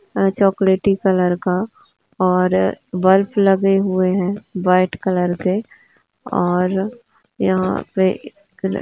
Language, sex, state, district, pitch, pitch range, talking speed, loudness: Hindi, female, Bihar, Gaya, 190 Hz, 185-195 Hz, 115 wpm, -18 LUFS